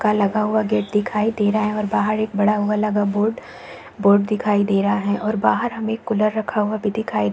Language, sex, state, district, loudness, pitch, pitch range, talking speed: Hindi, female, Chhattisgarh, Balrampur, -20 LUFS, 210 Hz, 205-215 Hz, 245 wpm